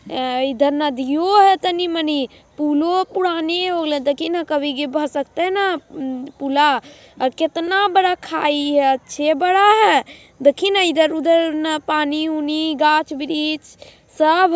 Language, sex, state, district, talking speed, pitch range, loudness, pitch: Magahi, female, Bihar, Jamui, 140 wpm, 290-345 Hz, -18 LUFS, 310 Hz